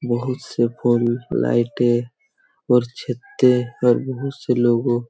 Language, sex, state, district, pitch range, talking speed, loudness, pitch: Hindi, male, Chhattisgarh, Raigarh, 120-125 Hz, 120 wpm, -20 LUFS, 120 Hz